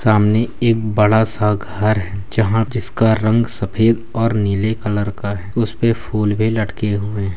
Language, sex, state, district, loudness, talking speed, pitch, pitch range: Hindi, male, Bihar, Purnia, -17 LUFS, 180 wpm, 110 Hz, 105-115 Hz